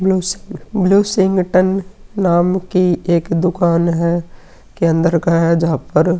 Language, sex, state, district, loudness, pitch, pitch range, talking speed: Hindi, male, Uttar Pradesh, Muzaffarnagar, -15 LUFS, 175 Hz, 170-190 Hz, 135 wpm